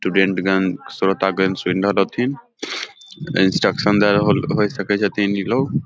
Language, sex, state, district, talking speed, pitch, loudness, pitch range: Maithili, male, Bihar, Samastipur, 135 wpm, 100 Hz, -19 LUFS, 95-105 Hz